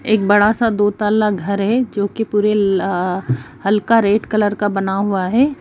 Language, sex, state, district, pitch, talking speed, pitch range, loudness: Hindi, female, Chhattisgarh, Sukma, 205 Hz, 180 wpm, 195-215 Hz, -16 LUFS